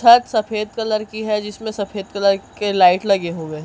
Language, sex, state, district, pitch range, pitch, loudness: Hindi, male, Chhattisgarh, Raipur, 195-220 Hz, 210 Hz, -19 LUFS